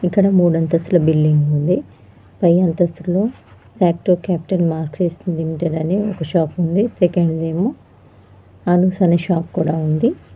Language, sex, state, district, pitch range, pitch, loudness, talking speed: Telugu, female, Telangana, Mahabubabad, 160-180 Hz, 170 Hz, -17 LUFS, 140 wpm